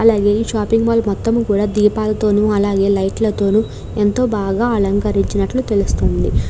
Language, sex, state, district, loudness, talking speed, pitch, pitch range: Telugu, female, Andhra Pradesh, Krishna, -16 LUFS, 145 wpm, 210 Hz, 195-215 Hz